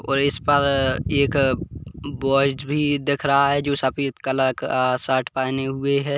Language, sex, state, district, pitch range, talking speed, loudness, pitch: Hindi, male, Chhattisgarh, Kabirdham, 130-140 Hz, 165 wpm, -21 LUFS, 140 Hz